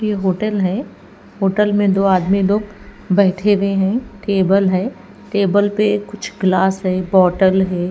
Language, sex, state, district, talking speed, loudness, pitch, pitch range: Hindi, female, Bihar, Katihar, 150 wpm, -16 LUFS, 195 Hz, 190-205 Hz